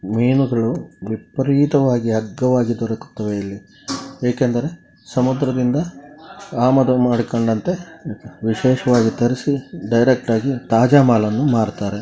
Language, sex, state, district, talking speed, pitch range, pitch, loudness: Kannada, male, Karnataka, Gulbarga, 85 wpm, 115-135 Hz, 125 Hz, -18 LUFS